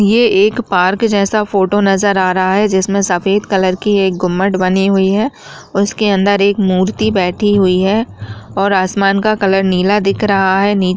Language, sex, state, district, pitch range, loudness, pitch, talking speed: Hindi, female, Bihar, Jahanabad, 185-205 Hz, -13 LUFS, 195 Hz, 170 wpm